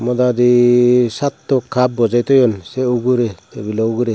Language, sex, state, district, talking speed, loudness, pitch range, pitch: Chakma, male, Tripura, Dhalai, 130 wpm, -15 LUFS, 115-125 Hz, 120 Hz